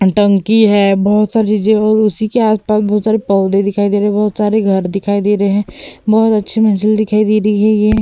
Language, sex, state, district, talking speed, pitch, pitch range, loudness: Hindi, female, Uttar Pradesh, Hamirpur, 230 wpm, 210 Hz, 200-215 Hz, -12 LUFS